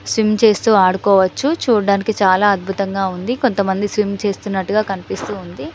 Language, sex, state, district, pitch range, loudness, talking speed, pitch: Telugu, female, Telangana, Karimnagar, 195-215 Hz, -16 LUFS, 125 wpm, 200 Hz